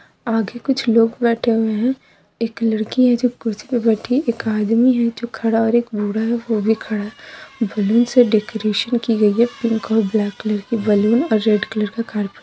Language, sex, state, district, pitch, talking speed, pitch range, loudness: Kumaoni, female, Uttarakhand, Tehri Garhwal, 225 Hz, 220 wpm, 215-235 Hz, -18 LUFS